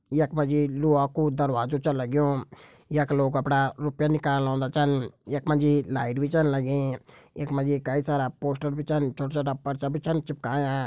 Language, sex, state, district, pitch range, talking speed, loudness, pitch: Garhwali, male, Uttarakhand, Tehri Garhwal, 135-150 Hz, 200 wpm, -26 LUFS, 145 Hz